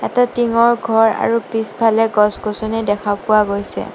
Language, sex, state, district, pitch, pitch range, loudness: Assamese, female, Assam, Sonitpur, 225 Hz, 210-230 Hz, -16 LUFS